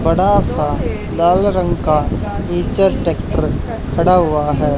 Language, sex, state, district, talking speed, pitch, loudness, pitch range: Hindi, male, Haryana, Charkhi Dadri, 125 wpm, 170 Hz, -16 LUFS, 150-180 Hz